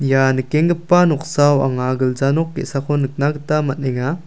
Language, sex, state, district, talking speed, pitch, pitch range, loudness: Garo, male, Meghalaya, South Garo Hills, 140 wpm, 145 Hz, 135-155 Hz, -17 LUFS